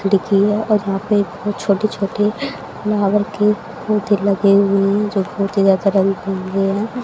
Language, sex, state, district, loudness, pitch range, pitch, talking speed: Hindi, female, Haryana, Charkhi Dadri, -17 LUFS, 195-210 Hz, 200 Hz, 160 wpm